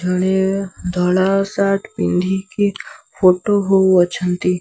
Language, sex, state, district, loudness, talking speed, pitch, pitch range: Odia, male, Odisha, Sambalpur, -17 LUFS, 90 wpm, 190 Hz, 180-195 Hz